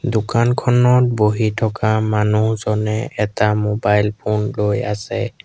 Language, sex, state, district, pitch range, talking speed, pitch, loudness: Assamese, male, Assam, Sonitpur, 105-115 Hz, 100 wpm, 110 Hz, -17 LUFS